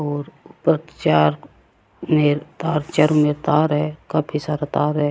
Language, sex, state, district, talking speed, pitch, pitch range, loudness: Rajasthani, female, Rajasthan, Churu, 140 wpm, 150 Hz, 145-155 Hz, -20 LUFS